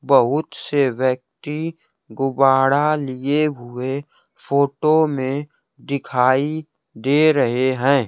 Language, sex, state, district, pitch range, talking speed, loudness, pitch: Hindi, male, Bihar, Kaimur, 130-150 Hz, 90 wpm, -19 LUFS, 140 Hz